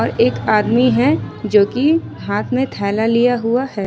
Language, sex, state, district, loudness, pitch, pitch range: Hindi, female, Jharkhand, Ranchi, -16 LUFS, 240 Hz, 215-255 Hz